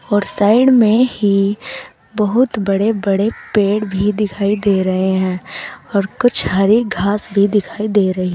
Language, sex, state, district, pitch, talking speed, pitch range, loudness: Hindi, female, Uttar Pradesh, Saharanpur, 205 Hz, 150 wpm, 195-220 Hz, -15 LUFS